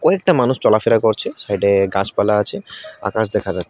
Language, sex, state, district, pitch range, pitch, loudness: Bengali, male, Tripura, West Tripura, 95-115 Hz, 105 Hz, -17 LUFS